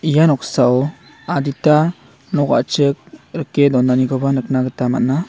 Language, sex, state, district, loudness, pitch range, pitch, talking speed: Garo, male, Meghalaya, West Garo Hills, -16 LUFS, 130-150 Hz, 140 Hz, 115 wpm